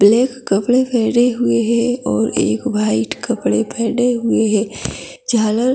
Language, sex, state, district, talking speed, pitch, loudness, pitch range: Hindi, female, Chhattisgarh, Kabirdham, 135 wpm, 230 Hz, -17 LUFS, 195-245 Hz